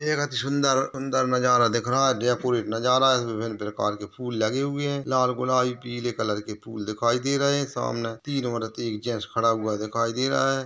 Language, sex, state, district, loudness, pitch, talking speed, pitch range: Hindi, male, Maharashtra, Solapur, -25 LUFS, 125 Hz, 225 wpm, 115-135 Hz